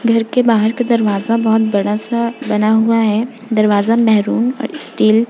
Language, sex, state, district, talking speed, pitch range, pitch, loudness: Hindi, female, Uttar Pradesh, Jalaun, 170 wpm, 215-235 Hz, 225 Hz, -14 LUFS